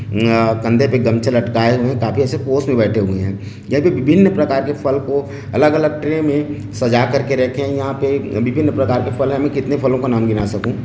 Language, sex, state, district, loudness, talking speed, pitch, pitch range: Hindi, male, Chhattisgarh, Bilaspur, -16 LUFS, 255 wpm, 130 Hz, 115-140 Hz